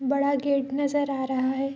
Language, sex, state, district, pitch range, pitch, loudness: Hindi, female, Bihar, Araria, 265-280 Hz, 275 Hz, -26 LUFS